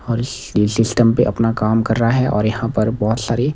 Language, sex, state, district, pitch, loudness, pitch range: Hindi, male, Himachal Pradesh, Shimla, 115 Hz, -17 LUFS, 110-120 Hz